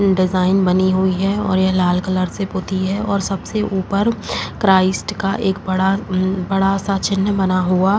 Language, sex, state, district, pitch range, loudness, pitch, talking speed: Hindi, female, Uttar Pradesh, Jalaun, 185-195 Hz, -18 LUFS, 190 Hz, 190 wpm